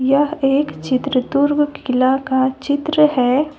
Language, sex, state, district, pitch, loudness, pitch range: Hindi, female, Jharkhand, Deoghar, 275 Hz, -17 LUFS, 260-290 Hz